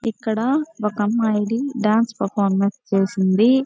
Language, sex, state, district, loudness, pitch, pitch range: Telugu, female, Andhra Pradesh, Chittoor, -20 LUFS, 220 Hz, 205-235 Hz